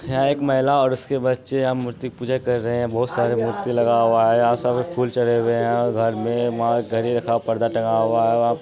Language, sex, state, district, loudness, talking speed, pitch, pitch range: Maithili, male, Bihar, Supaul, -20 LUFS, 250 wpm, 120 Hz, 115-125 Hz